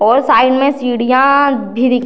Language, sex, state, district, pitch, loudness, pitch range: Hindi, female, Bihar, Sitamarhi, 255 Hz, -12 LUFS, 240-275 Hz